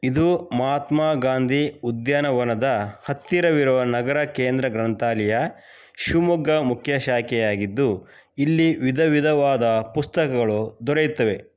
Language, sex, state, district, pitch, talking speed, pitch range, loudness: Kannada, male, Karnataka, Shimoga, 135 Hz, 75 wpm, 120-150 Hz, -21 LUFS